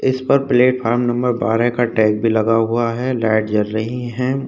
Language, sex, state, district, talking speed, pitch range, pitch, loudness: Hindi, male, Uttar Pradesh, Hamirpur, 200 wpm, 115-125 Hz, 120 Hz, -17 LUFS